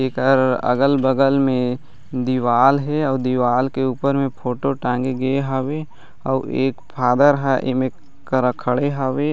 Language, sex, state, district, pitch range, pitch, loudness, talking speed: Chhattisgarhi, male, Chhattisgarh, Raigarh, 125-140 Hz, 130 Hz, -19 LUFS, 140 wpm